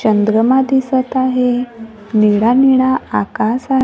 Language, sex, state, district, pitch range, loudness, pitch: Marathi, female, Maharashtra, Gondia, 220-260 Hz, -14 LUFS, 250 Hz